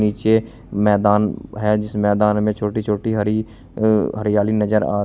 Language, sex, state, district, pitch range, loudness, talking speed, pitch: Hindi, male, Uttar Pradesh, Shamli, 105-110 Hz, -19 LUFS, 165 wpm, 105 Hz